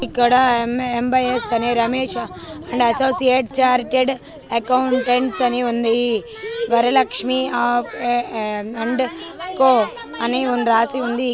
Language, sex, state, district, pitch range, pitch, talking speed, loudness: Telugu, female, Telangana, Karimnagar, 240-260 Hz, 250 Hz, 90 wpm, -18 LUFS